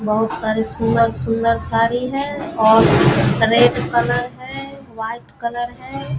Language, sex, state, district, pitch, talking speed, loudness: Hindi, female, Bihar, Vaishali, 225 Hz, 115 wpm, -17 LUFS